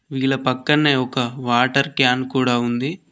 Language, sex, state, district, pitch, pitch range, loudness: Telugu, male, Telangana, Mahabubabad, 130 Hz, 125-140 Hz, -19 LUFS